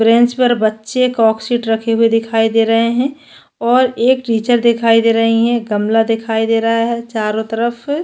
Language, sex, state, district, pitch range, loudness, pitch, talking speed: Hindi, female, Chhattisgarh, Sukma, 225-240 Hz, -14 LUFS, 230 Hz, 195 wpm